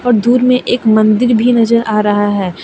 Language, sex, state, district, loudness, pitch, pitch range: Hindi, female, Jharkhand, Deoghar, -11 LUFS, 230 Hz, 210-245 Hz